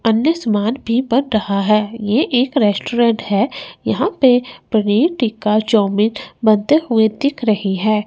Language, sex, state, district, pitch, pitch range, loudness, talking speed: Hindi, female, Chandigarh, Chandigarh, 225 Hz, 210-250 Hz, -16 LUFS, 150 wpm